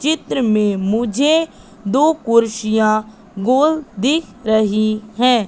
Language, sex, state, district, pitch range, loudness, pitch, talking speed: Hindi, female, Madhya Pradesh, Katni, 215-270 Hz, -17 LUFS, 225 Hz, 100 wpm